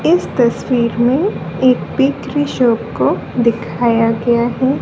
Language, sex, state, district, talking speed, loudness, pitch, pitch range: Hindi, female, Haryana, Rohtak, 125 wpm, -15 LUFS, 240 Hz, 235-260 Hz